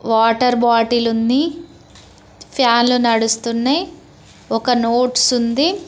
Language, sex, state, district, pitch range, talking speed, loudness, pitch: Telugu, female, Telangana, Mahabubabad, 230-260 Hz, 80 wpm, -16 LUFS, 240 Hz